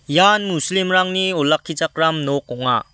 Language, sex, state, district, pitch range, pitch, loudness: Garo, male, Meghalaya, West Garo Hills, 145-185 Hz, 165 Hz, -18 LUFS